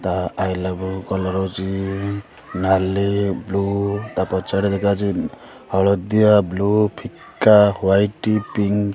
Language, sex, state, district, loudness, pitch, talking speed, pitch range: Odia, male, Odisha, Khordha, -19 LUFS, 100 Hz, 100 wpm, 95-100 Hz